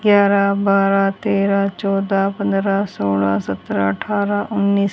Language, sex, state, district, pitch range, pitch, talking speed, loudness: Hindi, female, Haryana, Rohtak, 195-200 Hz, 195 Hz, 110 wpm, -18 LUFS